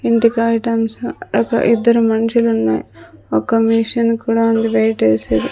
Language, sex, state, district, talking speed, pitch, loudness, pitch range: Telugu, female, Andhra Pradesh, Sri Satya Sai, 130 wpm, 225 Hz, -15 LUFS, 220-230 Hz